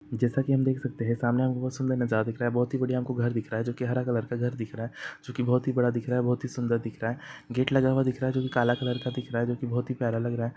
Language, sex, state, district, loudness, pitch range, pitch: Hindi, male, Maharashtra, Dhule, -28 LUFS, 120-130 Hz, 125 Hz